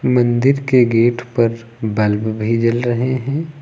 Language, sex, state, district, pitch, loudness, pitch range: Hindi, male, Uttar Pradesh, Lucknow, 120 Hz, -17 LUFS, 115-130 Hz